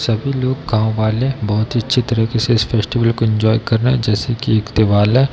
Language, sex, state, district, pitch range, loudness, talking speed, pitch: Hindi, male, Bihar, Darbhanga, 110-125 Hz, -16 LUFS, 225 wpm, 115 Hz